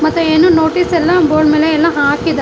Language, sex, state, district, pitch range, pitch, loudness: Kannada, female, Karnataka, Bangalore, 310-335 Hz, 320 Hz, -11 LUFS